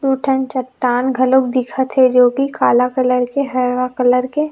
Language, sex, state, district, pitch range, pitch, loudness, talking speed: Chhattisgarhi, female, Chhattisgarh, Rajnandgaon, 250-265 Hz, 255 Hz, -15 LUFS, 200 wpm